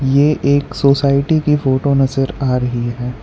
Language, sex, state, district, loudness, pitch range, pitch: Hindi, male, Gujarat, Valsad, -15 LUFS, 130-140 Hz, 140 Hz